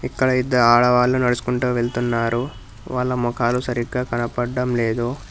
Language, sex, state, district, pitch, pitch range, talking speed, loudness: Telugu, male, Telangana, Hyderabad, 120 Hz, 120-125 Hz, 115 wpm, -20 LUFS